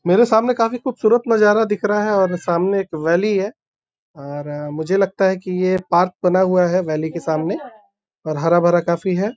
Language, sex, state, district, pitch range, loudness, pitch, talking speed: Hindi, male, Uttar Pradesh, Deoria, 170-210 Hz, -18 LUFS, 185 Hz, 190 wpm